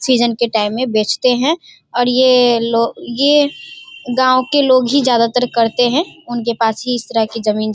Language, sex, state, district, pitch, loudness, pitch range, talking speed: Hindi, female, Bihar, Darbhanga, 245 Hz, -15 LUFS, 230-260 Hz, 195 wpm